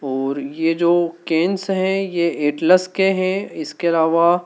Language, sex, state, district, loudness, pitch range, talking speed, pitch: Hindi, male, Madhya Pradesh, Dhar, -19 LUFS, 160-185 Hz, 150 wpm, 170 Hz